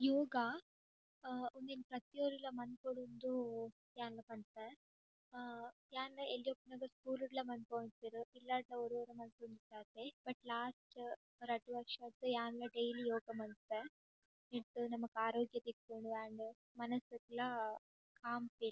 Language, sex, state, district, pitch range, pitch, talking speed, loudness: Tulu, female, Karnataka, Dakshina Kannada, 230-255 Hz, 240 Hz, 125 wpm, -46 LUFS